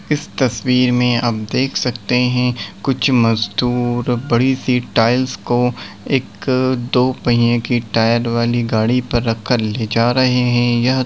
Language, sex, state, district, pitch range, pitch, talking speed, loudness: Hindi, male, Chhattisgarh, Raigarh, 120-125 Hz, 120 Hz, 150 wpm, -16 LUFS